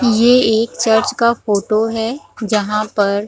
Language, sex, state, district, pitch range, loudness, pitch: Hindi, female, Bihar, Supaul, 210-235 Hz, -15 LUFS, 220 Hz